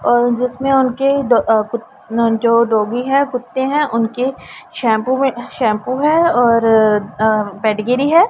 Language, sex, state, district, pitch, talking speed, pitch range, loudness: Hindi, female, Punjab, Pathankot, 240 Hz, 160 wpm, 225-265 Hz, -15 LUFS